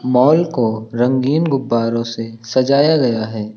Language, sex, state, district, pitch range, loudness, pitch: Hindi, male, Uttar Pradesh, Lucknow, 115-135 Hz, -16 LUFS, 120 Hz